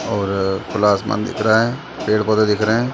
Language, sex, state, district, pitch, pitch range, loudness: Hindi, male, Chhattisgarh, Bastar, 105 Hz, 105-110 Hz, -18 LUFS